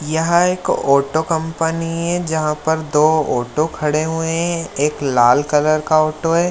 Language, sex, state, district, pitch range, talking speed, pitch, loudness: Hindi, male, Bihar, Lakhisarai, 150-165 Hz, 165 wpm, 155 Hz, -17 LUFS